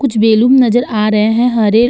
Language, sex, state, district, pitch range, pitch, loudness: Hindi, female, Uttar Pradesh, Jalaun, 215-245 Hz, 225 Hz, -11 LUFS